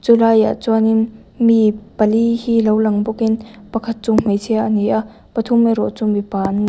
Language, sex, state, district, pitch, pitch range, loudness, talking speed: Mizo, female, Mizoram, Aizawl, 220 Hz, 215-230 Hz, -16 LUFS, 190 wpm